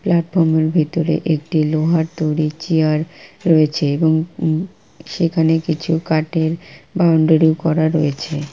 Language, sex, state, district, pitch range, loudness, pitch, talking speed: Bengali, female, West Bengal, Purulia, 155-165 Hz, -17 LUFS, 160 Hz, 115 wpm